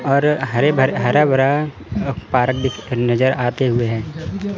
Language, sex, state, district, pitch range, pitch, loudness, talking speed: Hindi, male, Chandigarh, Chandigarh, 120-145 Hz, 130 Hz, -18 LUFS, 120 wpm